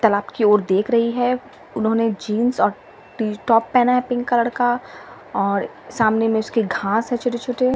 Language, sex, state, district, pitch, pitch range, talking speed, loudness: Hindi, female, Delhi, New Delhi, 230 Hz, 215-245 Hz, 180 wpm, -20 LUFS